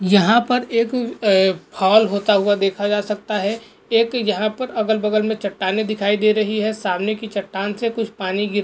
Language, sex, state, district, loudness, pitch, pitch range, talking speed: Hindi, male, Goa, North and South Goa, -19 LUFS, 210 Hz, 200-220 Hz, 210 wpm